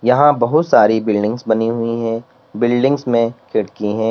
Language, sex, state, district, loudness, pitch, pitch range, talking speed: Hindi, male, Uttar Pradesh, Lalitpur, -16 LUFS, 115 Hz, 110-125 Hz, 160 wpm